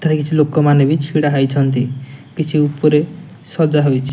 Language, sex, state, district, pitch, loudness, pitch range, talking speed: Odia, male, Odisha, Nuapada, 150 Hz, -15 LUFS, 140-155 Hz, 145 wpm